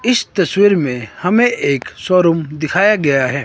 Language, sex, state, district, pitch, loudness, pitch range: Hindi, male, Himachal Pradesh, Shimla, 170 Hz, -15 LUFS, 140-205 Hz